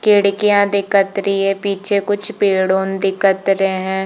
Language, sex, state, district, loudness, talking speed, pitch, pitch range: Hindi, female, Chhattisgarh, Bilaspur, -16 LUFS, 165 wpm, 195 Hz, 195-200 Hz